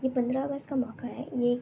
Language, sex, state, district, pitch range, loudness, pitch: Hindi, female, West Bengal, Jalpaiguri, 245-270 Hz, -31 LUFS, 255 Hz